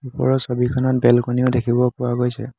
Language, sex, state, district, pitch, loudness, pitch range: Assamese, male, Assam, Hailakandi, 125 Hz, -19 LUFS, 120-130 Hz